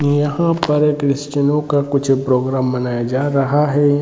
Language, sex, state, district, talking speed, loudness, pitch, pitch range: Hindi, male, Jharkhand, Sahebganj, 150 wpm, -17 LUFS, 145 Hz, 135-145 Hz